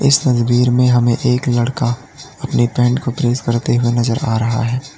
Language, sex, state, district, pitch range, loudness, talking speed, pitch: Hindi, male, Uttar Pradesh, Lalitpur, 120-125 Hz, -15 LUFS, 190 wpm, 120 Hz